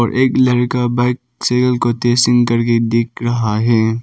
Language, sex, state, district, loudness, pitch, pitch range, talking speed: Hindi, male, Arunachal Pradesh, Papum Pare, -15 LUFS, 120 Hz, 115-125 Hz, 150 wpm